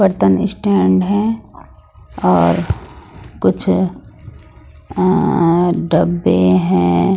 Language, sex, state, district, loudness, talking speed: Hindi, female, Odisha, Sambalpur, -15 LUFS, 65 wpm